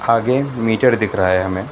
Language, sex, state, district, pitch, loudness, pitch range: Hindi, male, Karnataka, Bangalore, 115 Hz, -17 LUFS, 95-125 Hz